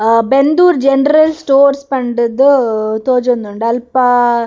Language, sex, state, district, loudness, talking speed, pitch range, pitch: Tulu, female, Karnataka, Dakshina Kannada, -12 LUFS, 95 wpm, 235-275 Hz, 255 Hz